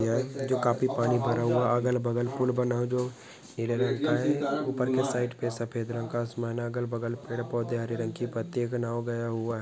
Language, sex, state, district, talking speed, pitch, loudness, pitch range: Hindi, male, West Bengal, Malda, 195 wpm, 120 Hz, -29 LUFS, 120-125 Hz